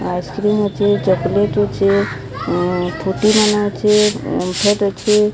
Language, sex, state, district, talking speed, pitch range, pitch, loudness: Odia, female, Odisha, Sambalpur, 110 wpm, 175-210 Hz, 200 Hz, -16 LUFS